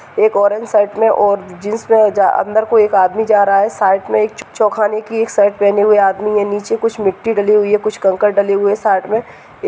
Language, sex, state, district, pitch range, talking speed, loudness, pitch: Hindi, male, Uttar Pradesh, Deoria, 200-220 Hz, 265 wpm, -14 LUFS, 210 Hz